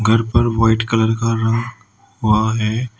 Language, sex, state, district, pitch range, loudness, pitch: Hindi, male, Uttar Pradesh, Shamli, 110-115 Hz, -17 LUFS, 115 Hz